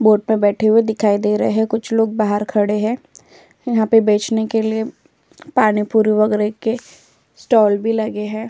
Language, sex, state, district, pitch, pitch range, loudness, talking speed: Hindi, female, Uttar Pradesh, Jyotiba Phule Nagar, 220 Hz, 210-225 Hz, -17 LUFS, 175 wpm